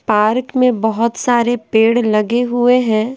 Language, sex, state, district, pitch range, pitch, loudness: Hindi, female, Bihar, Patna, 220-245 Hz, 235 Hz, -14 LUFS